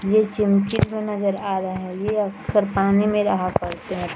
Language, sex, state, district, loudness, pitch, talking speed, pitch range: Hindi, female, Bihar, Jahanabad, -22 LUFS, 200 Hz, 200 wpm, 185-210 Hz